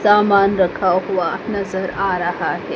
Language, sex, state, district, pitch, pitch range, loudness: Hindi, female, Madhya Pradesh, Dhar, 195 Hz, 185-200 Hz, -18 LUFS